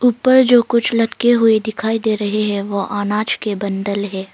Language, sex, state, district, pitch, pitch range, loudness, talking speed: Hindi, female, Arunachal Pradesh, Longding, 220 Hz, 200-235 Hz, -16 LUFS, 195 wpm